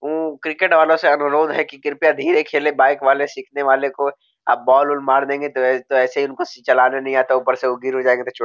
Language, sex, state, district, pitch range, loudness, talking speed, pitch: Hindi, male, Bihar, Gopalganj, 130-155 Hz, -17 LUFS, 255 wpm, 140 Hz